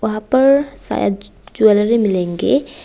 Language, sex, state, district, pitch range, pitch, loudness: Hindi, female, Tripura, West Tripura, 175-260 Hz, 215 Hz, -15 LUFS